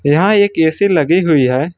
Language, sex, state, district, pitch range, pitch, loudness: Hindi, male, Jharkhand, Ranchi, 150-195 Hz, 165 Hz, -12 LUFS